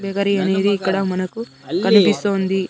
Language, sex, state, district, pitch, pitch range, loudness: Telugu, male, Andhra Pradesh, Sri Satya Sai, 195 Hz, 190-200 Hz, -18 LUFS